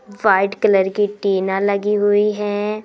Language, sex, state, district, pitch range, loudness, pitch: Hindi, female, Madhya Pradesh, Umaria, 195-210 Hz, -17 LUFS, 205 Hz